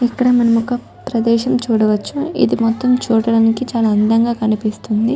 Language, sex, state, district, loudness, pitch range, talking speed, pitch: Telugu, female, Telangana, Nalgonda, -16 LUFS, 225-250 Hz, 115 wpm, 230 Hz